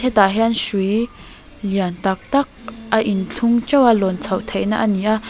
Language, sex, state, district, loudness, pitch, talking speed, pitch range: Mizo, female, Mizoram, Aizawl, -18 LUFS, 215 Hz, 180 wpm, 195-230 Hz